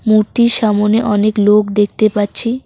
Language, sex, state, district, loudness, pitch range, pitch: Bengali, female, West Bengal, Cooch Behar, -13 LUFS, 210-225 Hz, 215 Hz